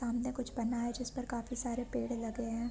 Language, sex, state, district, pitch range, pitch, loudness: Hindi, female, Chhattisgarh, Korba, 235-250 Hz, 240 Hz, -38 LUFS